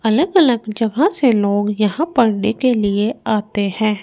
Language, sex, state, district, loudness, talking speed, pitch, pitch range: Hindi, female, Chandigarh, Chandigarh, -16 LUFS, 165 wpm, 220 Hz, 210-250 Hz